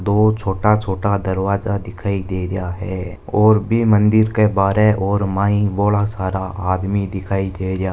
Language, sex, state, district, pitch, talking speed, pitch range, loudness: Marwari, male, Rajasthan, Nagaur, 100 Hz, 160 wpm, 95-105 Hz, -18 LUFS